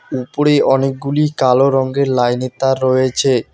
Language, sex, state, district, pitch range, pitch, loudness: Bengali, male, West Bengal, Alipurduar, 130-135 Hz, 135 Hz, -15 LUFS